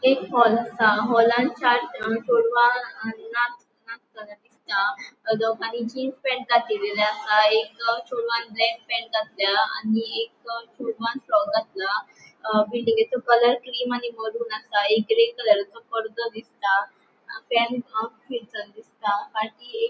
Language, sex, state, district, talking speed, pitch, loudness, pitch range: Konkani, female, Goa, North and South Goa, 120 wpm, 230 Hz, -23 LUFS, 220-240 Hz